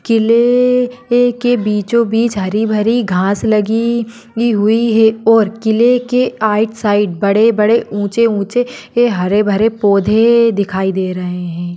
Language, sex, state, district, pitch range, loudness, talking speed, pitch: Hindi, female, Maharashtra, Sindhudurg, 205-235 Hz, -13 LUFS, 130 wpm, 220 Hz